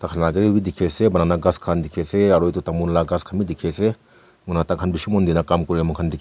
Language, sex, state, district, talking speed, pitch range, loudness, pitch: Nagamese, male, Nagaland, Kohima, 250 wpm, 85-95 Hz, -20 LUFS, 90 Hz